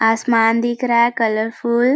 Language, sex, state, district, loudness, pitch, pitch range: Hindi, female, Chhattisgarh, Balrampur, -17 LUFS, 235 Hz, 225-240 Hz